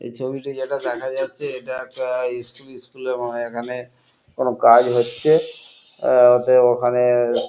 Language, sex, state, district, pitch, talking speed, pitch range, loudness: Bengali, male, West Bengal, Kolkata, 125 Hz, 160 wpm, 120-130 Hz, -19 LUFS